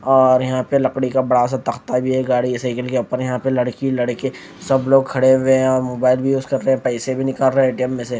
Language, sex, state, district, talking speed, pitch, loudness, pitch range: Hindi, male, Haryana, Jhajjar, 265 wpm, 130 Hz, -18 LUFS, 125-130 Hz